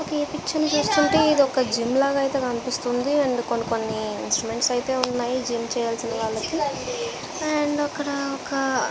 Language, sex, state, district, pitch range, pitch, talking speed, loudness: Telugu, female, Andhra Pradesh, Visakhapatnam, 235-295 Hz, 260 Hz, 140 wpm, -23 LUFS